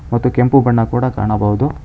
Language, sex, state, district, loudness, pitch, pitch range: Kannada, male, Karnataka, Bangalore, -15 LUFS, 120 Hz, 105-125 Hz